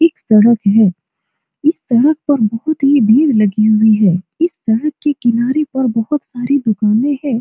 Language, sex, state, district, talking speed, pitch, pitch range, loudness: Hindi, female, Bihar, Supaul, 185 wpm, 240 Hz, 215-290 Hz, -13 LUFS